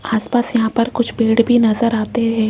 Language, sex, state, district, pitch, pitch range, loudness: Hindi, female, Rajasthan, Jaipur, 230 Hz, 220-235 Hz, -16 LUFS